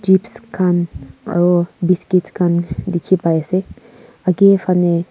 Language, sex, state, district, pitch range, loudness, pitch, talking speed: Nagamese, female, Nagaland, Kohima, 175-190 Hz, -16 LUFS, 180 Hz, 115 wpm